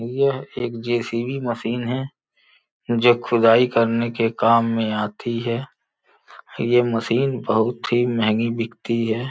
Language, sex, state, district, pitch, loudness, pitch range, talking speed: Hindi, male, Uttar Pradesh, Gorakhpur, 115 Hz, -21 LUFS, 115-120 Hz, 130 wpm